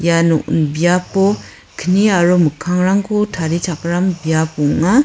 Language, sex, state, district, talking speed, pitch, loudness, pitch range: Garo, female, Meghalaya, West Garo Hills, 105 wpm, 175 Hz, -15 LUFS, 160-190 Hz